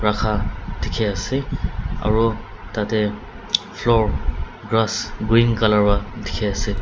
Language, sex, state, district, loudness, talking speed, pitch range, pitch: Nagamese, male, Nagaland, Dimapur, -21 LUFS, 90 wpm, 100-110 Hz, 105 Hz